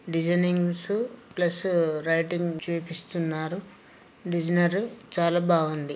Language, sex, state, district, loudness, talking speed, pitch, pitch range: Telugu, male, Telangana, Nalgonda, -26 LUFS, 190 wpm, 175 Hz, 165-180 Hz